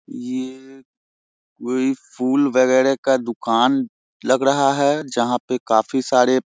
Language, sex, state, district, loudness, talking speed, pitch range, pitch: Hindi, male, Bihar, Muzaffarpur, -19 LUFS, 120 wpm, 125-135 Hz, 130 Hz